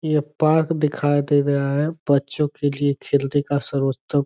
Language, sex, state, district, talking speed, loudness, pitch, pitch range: Hindi, male, Uttar Pradesh, Ghazipur, 180 wpm, -21 LUFS, 145 Hz, 140-150 Hz